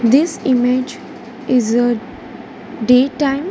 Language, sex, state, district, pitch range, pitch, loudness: English, female, Gujarat, Valsad, 245-270 Hz, 255 Hz, -16 LUFS